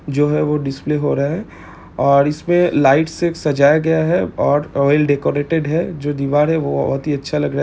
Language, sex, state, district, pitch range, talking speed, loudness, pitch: Hindi, male, Chhattisgarh, Bilaspur, 140-160 Hz, 220 wpm, -17 LUFS, 150 Hz